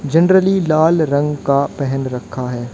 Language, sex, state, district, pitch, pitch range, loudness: Hindi, female, Haryana, Jhajjar, 145 Hz, 135-160 Hz, -16 LUFS